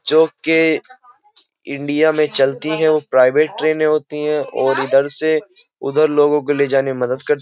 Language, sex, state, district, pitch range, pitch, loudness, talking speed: Hindi, male, Uttar Pradesh, Jyotiba Phule Nagar, 140-155 Hz, 150 Hz, -16 LUFS, 185 wpm